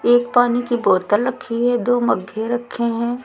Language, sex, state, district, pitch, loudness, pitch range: Hindi, female, Chhattisgarh, Raipur, 240 Hz, -19 LUFS, 230-245 Hz